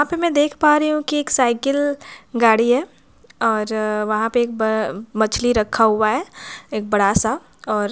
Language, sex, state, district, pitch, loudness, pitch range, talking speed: Hindi, female, Jharkhand, Jamtara, 230 Hz, -19 LUFS, 215-285 Hz, 190 wpm